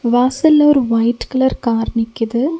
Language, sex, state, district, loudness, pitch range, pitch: Tamil, female, Tamil Nadu, Nilgiris, -15 LUFS, 235-270 Hz, 250 Hz